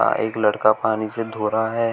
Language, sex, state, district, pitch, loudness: Hindi, male, Uttar Pradesh, Shamli, 110 Hz, -21 LUFS